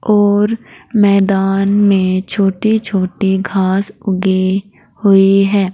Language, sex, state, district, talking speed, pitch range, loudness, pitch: Hindi, female, Uttar Pradesh, Saharanpur, 95 wpm, 190-205 Hz, -13 LUFS, 195 Hz